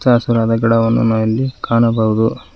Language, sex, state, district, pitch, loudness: Kannada, female, Karnataka, Koppal, 115 Hz, -15 LUFS